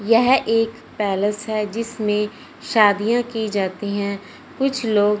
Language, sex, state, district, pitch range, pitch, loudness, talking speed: Hindi, male, Punjab, Fazilka, 205-235 Hz, 215 Hz, -20 LUFS, 125 wpm